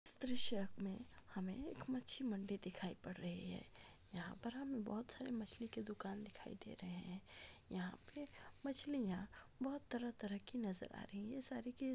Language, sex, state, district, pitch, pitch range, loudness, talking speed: Hindi, female, Rajasthan, Churu, 215 Hz, 195-255 Hz, -46 LUFS, 180 wpm